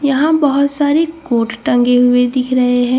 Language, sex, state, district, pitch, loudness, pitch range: Hindi, female, Bihar, Katihar, 255 Hz, -13 LUFS, 245-290 Hz